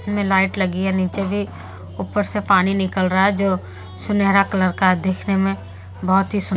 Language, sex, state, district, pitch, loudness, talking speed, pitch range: Hindi, female, Delhi, New Delhi, 190 Hz, -19 LUFS, 190 wpm, 185-195 Hz